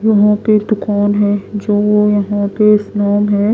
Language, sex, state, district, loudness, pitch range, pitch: Hindi, female, Bihar, Kaimur, -13 LUFS, 205-210 Hz, 205 Hz